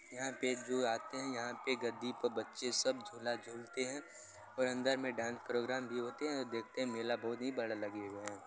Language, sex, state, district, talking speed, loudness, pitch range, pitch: Maithili, male, Bihar, Supaul, 225 wpm, -40 LUFS, 115-130 Hz, 120 Hz